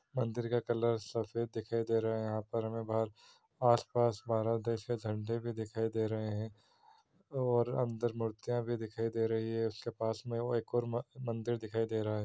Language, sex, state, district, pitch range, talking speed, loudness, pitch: Hindi, male, Bihar, Saran, 110-120 Hz, 195 wpm, -36 LUFS, 115 Hz